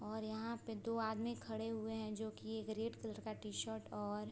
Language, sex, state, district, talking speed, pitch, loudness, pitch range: Hindi, female, Bihar, Sitamarhi, 235 wpm, 220 Hz, -44 LUFS, 140-225 Hz